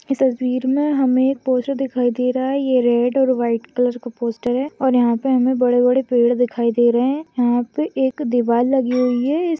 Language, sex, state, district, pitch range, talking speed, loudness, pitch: Hindi, female, Maharashtra, Pune, 245-265 Hz, 220 wpm, -18 LUFS, 255 Hz